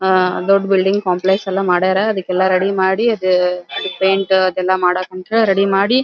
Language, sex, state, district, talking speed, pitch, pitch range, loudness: Kannada, female, Karnataka, Belgaum, 160 wpm, 190 Hz, 185-195 Hz, -15 LUFS